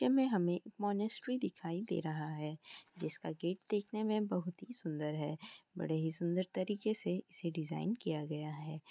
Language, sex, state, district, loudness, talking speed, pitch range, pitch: Hindi, female, Bihar, Kishanganj, -39 LUFS, 175 wpm, 160-210 Hz, 180 Hz